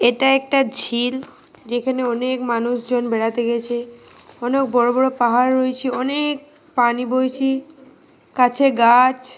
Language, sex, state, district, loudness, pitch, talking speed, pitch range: Bengali, female, Jharkhand, Jamtara, -19 LUFS, 255 Hz, 115 wpm, 240-270 Hz